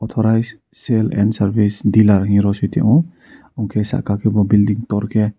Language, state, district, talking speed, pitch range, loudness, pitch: Kokborok, Tripura, Dhalai, 165 wpm, 100-110 Hz, -16 LUFS, 105 Hz